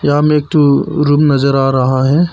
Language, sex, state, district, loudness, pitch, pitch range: Hindi, male, Arunachal Pradesh, Papum Pare, -12 LUFS, 145 Hz, 135-150 Hz